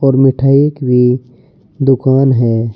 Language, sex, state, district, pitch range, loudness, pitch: Hindi, male, Uttar Pradesh, Saharanpur, 125-135 Hz, -12 LUFS, 130 Hz